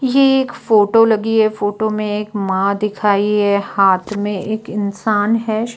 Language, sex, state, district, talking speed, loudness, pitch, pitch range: Hindi, female, Bihar, Katihar, 165 wpm, -16 LUFS, 210 Hz, 205-220 Hz